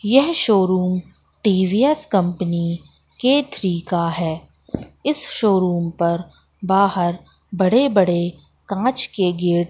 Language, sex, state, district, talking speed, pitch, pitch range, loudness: Hindi, female, Madhya Pradesh, Katni, 105 wpm, 185 Hz, 175-220 Hz, -19 LUFS